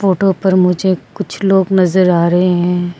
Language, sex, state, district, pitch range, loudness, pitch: Hindi, female, Arunachal Pradesh, Papum Pare, 180-190 Hz, -13 LUFS, 185 Hz